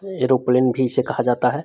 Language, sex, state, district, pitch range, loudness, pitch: Hindi, male, Bihar, Samastipur, 125-135 Hz, -19 LUFS, 130 Hz